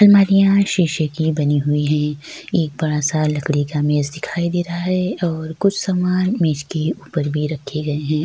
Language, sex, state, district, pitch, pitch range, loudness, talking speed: Hindi, female, Bihar, Kishanganj, 155 Hz, 150-180 Hz, -19 LUFS, 190 wpm